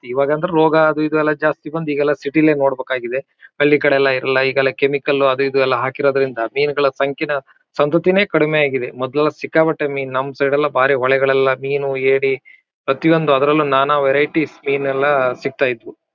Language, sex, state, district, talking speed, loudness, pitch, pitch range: Kannada, male, Karnataka, Shimoga, 165 wpm, -17 LUFS, 140 Hz, 135-150 Hz